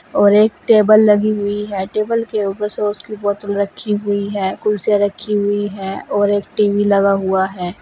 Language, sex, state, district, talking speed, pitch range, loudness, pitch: Hindi, female, Uttar Pradesh, Saharanpur, 190 wpm, 200-210 Hz, -16 LUFS, 205 Hz